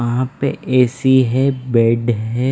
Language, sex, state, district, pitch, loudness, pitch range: Hindi, male, Punjab, Fazilka, 125 Hz, -16 LUFS, 120-130 Hz